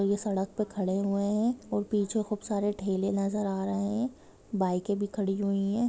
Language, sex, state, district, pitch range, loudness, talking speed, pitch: Hindi, female, Jharkhand, Jamtara, 195-210 Hz, -30 LUFS, 205 wpm, 200 Hz